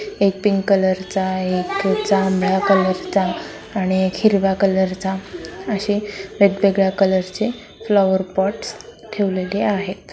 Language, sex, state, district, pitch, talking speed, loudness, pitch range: Marathi, female, Maharashtra, Solapur, 195 Hz, 130 wpm, -19 LUFS, 190-200 Hz